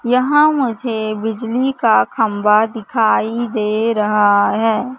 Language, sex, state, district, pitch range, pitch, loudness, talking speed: Hindi, female, Madhya Pradesh, Katni, 215-245 Hz, 225 Hz, -16 LUFS, 110 wpm